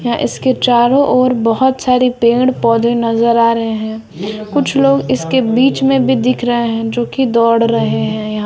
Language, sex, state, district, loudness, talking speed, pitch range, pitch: Hindi, female, Bihar, West Champaran, -13 LUFS, 190 wpm, 230-255 Hz, 240 Hz